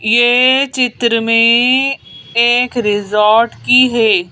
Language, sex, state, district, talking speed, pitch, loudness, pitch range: Hindi, female, Madhya Pradesh, Bhopal, 95 wpm, 235 Hz, -11 LUFS, 225-250 Hz